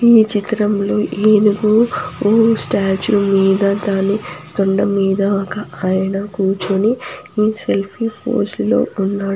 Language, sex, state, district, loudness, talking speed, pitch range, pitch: Telugu, female, Andhra Pradesh, Anantapur, -16 LUFS, 110 wpm, 195-215 Hz, 200 Hz